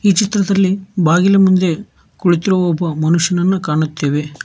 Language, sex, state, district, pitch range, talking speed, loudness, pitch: Kannada, male, Karnataka, Bangalore, 160-195 Hz, 95 wpm, -15 LUFS, 180 Hz